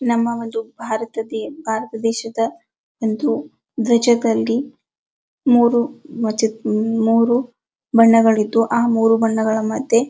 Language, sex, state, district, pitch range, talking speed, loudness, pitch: Kannada, male, Karnataka, Dharwad, 225-235 Hz, 70 wpm, -18 LUFS, 230 Hz